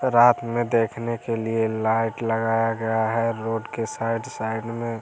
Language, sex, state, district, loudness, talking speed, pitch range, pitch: Hindi, male, Bihar, Araria, -24 LUFS, 165 wpm, 110-115 Hz, 115 Hz